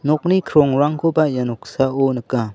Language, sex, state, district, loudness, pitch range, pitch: Garo, male, Meghalaya, South Garo Hills, -18 LUFS, 130-155 Hz, 140 Hz